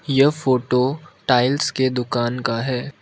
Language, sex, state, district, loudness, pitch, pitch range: Hindi, male, Arunachal Pradesh, Lower Dibang Valley, -20 LUFS, 130 Hz, 120-135 Hz